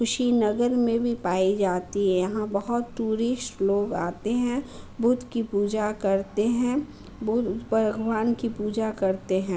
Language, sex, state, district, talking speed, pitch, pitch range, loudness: Hindi, female, Bihar, Muzaffarpur, 150 wpm, 220 Hz, 200-240 Hz, -25 LUFS